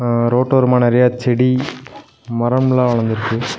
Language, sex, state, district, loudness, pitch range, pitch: Tamil, male, Tamil Nadu, Nilgiris, -15 LUFS, 120-130 Hz, 125 Hz